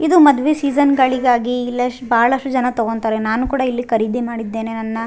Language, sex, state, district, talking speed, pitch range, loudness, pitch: Kannada, female, Karnataka, Raichur, 165 wpm, 225-265 Hz, -17 LUFS, 245 Hz